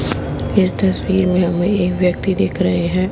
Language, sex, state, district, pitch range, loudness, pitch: Hindi, female, Haryana, Jhajjar, 175-185 Hz, -17 LUFS, 180 Hz